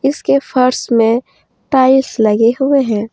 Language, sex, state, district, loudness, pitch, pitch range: Hindi, female, Jharkhand, Deoghar, -13 LUFS, 255 Hz, 225-270 Hz